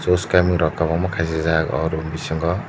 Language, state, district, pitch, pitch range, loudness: Kokborok, Tripura, Dhalai, 80 Hz, 80-90 Hz, -20 LUFS